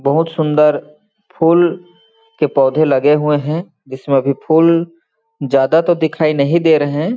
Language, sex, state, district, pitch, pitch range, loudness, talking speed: Hindi, male, Chhattisgarh, Balrampur, 160 Hz, 145-170 Hz, -14 LUFS, 150 wpm